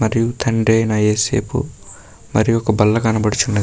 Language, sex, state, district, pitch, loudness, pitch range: Telugu, male, Karnataka, Bellary, 110 Hz, -17 LUFS, 105-115 Hz